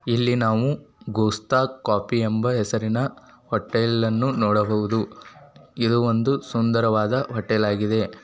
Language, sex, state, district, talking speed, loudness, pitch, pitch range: Kannada, male, Karnataka, Bijapur, 100 wpm, -22 LUFS, 115 Hz, 110-125 Hz